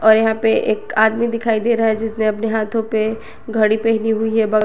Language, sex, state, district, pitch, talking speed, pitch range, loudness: Hindi, female, Jharkhand, Garhwa, 220 Hz, 220 wpm, 220-225 Hz, -17 LUFS